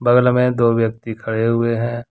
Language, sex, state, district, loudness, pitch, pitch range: Hindi, male, Jharkhand, Deoghar, -17 LUFS, 115 Hz, 115-120 Hz